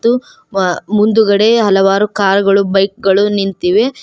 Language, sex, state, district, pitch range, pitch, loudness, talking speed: Kannada, female, Karnataka, Koppal, 195-225 Hz, 205 Hz, -12 LUFS, 135 wpm